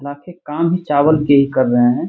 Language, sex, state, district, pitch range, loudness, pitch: Hindi, male, Bihar, Jamui, 135-155 Hz, -14 LUFS, 145 Hz